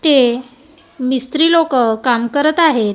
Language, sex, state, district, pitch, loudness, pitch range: Marathi, female, Maharashtra, Gondia, 260 Hz, -14 LUFS, 245-310 Hz